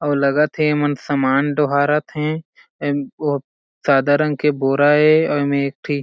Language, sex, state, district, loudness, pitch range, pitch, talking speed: Chhattisgarhi, male, Chhattisgarh, Jashpur, -18 LUFS, 140-150 Hz, 145 Hz, 180 wpm